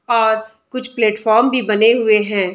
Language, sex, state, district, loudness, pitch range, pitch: Hindi, female, Uttar Pradesh, Budaun, -15 LUFS, 215-240 Hz, 220 Hz